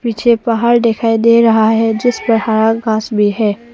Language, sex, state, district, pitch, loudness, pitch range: Hindi, female, Arunachal Pradesh, Papum Pare, 225 Hz, -12 LUFS, 220-235 Hz